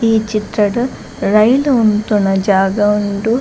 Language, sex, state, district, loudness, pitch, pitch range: Tulu, female, Karnataka, Dakshina Kannada, -14 LUFS, 210 Hz, 205-225 Hz